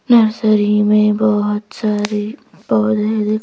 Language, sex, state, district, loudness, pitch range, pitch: Hindi, female, Madhya Pradesh, Bhopal, -15 LUFS, 210-215 Hz, 210 Hz